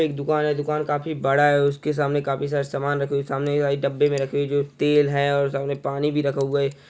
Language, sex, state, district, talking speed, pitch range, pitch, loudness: Hindi, male, Andhra Pradesh, Visakhapatnam, 245 wpm, 140-145 Hz, 145 Hz, -22 LUFS